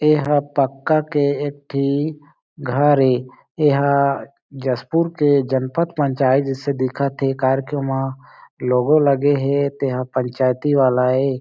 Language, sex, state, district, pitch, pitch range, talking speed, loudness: Chhattisgarhi, male, Chhattisgarh, Jashpur, 140 Hz, 130-145 Hz, 135 wpm, -19 LUFS